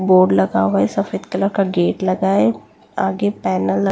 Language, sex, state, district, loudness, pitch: Hindi, female, Delhi, New Delhi, -17 LUFS, 180 Hz